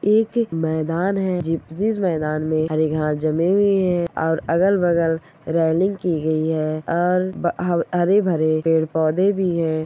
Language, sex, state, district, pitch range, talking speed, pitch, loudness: Hindi, female, Goa, North and South Goa, 160-185 Hz, 145 wpm, 165 Hz, -20 LUFS